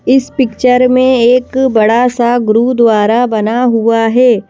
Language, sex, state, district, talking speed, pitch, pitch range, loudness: Hindi, female, Madhya Pradesh, Bhopal, 145 wpm, 240 Hz, 225-255 Hz, -10 LUFS